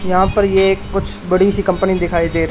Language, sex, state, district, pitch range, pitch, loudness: Hindi, male, Haryana, Charkhi Dadri, 180-195 Hz, 190 Hz, -15 LUFS